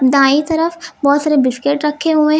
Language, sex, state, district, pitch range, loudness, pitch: Hindi, female, Uttar Pradesh, Lucknow, 280-315 Hz, -14 LUFS, 300 Hz